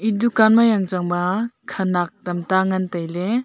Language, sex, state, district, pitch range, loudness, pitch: Wancho, female, Arunachal Pradesh, Longding, 180-220 Hz, -20 LUFS, 190 Hz